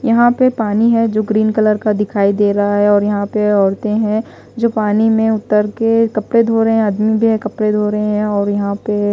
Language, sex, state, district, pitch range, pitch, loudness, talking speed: Hindi, female, Chhattisgarh, Raipur, 210-225 Hz, 215 Hz, -14 LUFS, 235 wpm